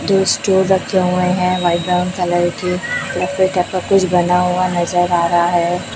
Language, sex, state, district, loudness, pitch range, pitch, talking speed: Hindi, female, Chhattisgarh, Raipur, -16 LUFS, 175-185 Hz, 180 Hz, 160 wpm